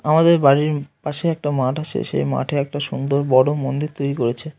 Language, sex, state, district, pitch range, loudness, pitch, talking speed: Bengali, male, West Bengal, North 24 Parganas, 140-155 Hz, -19 LUFS, 145 Hz, 185 wpm